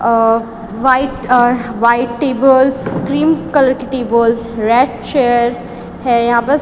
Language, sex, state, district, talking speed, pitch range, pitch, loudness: Hindi, female, Chhattisgarh, Raipur, 135 wpm, 235-265 Hz, 245 Hz, -13 LUFS